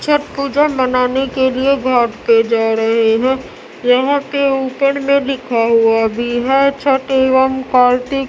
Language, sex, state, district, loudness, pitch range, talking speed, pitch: Hindi, female, Bihar, Katihar, -14 LUFS, 240-275 Hz, 160 wpm, 260 Hz